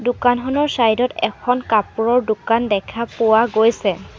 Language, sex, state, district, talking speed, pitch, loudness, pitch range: Assamese, female, Assam, Sonitpur, 130 wpm, 235 Hz, -18 LUFS, 220-245 Hz